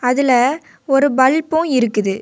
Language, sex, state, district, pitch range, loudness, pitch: Tamil, female, Tamil Nadu, Kanyakumari, 245-285 Hz, -15 LUFS, 260 Hz